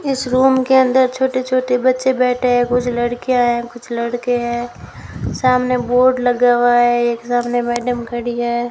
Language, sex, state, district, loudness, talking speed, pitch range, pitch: Hindi, female, Rajasthan, Bikaner, -16 LUFS, 170 wpm, 240-255 Hz, 245 Hz